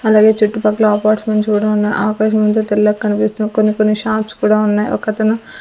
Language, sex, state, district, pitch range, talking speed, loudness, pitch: Telugu, female, Andhra Pradesh, Sri Satya Sai, 210-215 Hz, 160 wpm, -14 LUFS, 215 Hz